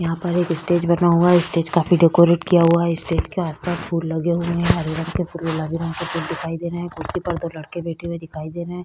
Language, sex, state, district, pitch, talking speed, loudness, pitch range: Hindi, female, Chhattisgarh, Korba, 170 Hz, 255 wpm, -20 LUFS, 165-175 Hz